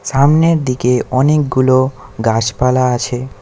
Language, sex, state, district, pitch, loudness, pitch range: Bengali, male, West Bengal, Alipurduar, 130 Hz, -14 LUFS, 125-135 Hz